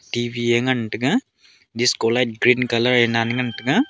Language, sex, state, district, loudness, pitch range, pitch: Wancho, male, Arunachal Pradesh, Longding, -19 LUFS, 115-125 Hz, 120 Hz